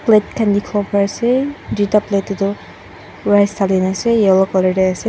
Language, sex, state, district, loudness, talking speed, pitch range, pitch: Nagamese, female, Mizoram, Aizawl, -16 LUFS, 210 wpm, 195-215 Hz, 200 Hz